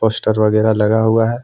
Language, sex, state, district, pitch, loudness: Hindi, male, Jharkhand, Deoghar, 110 Hz, -14 LUFS